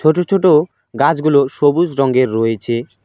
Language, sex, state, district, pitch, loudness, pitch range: Bengali, male, West Bengal, Alipurduar, 140 Hz, -14 LUFS, 120-155 Hz